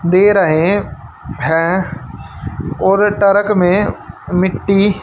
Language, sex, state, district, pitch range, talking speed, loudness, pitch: Hindi, female, Haryana, Charkhi Dadri, 170-200 Hz, 85 wpm, -14 LUFS, 190 Hz